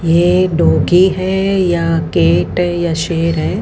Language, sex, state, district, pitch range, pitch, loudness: Hindi, female, Haryana, Rohtak, 165-180 Hz, 170 Hz, -13 LUFS